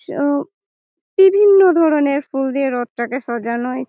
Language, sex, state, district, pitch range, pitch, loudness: Bengali, female, West Bengal, Malda, 255-355 Hz, 280 Hz, -16 LUFS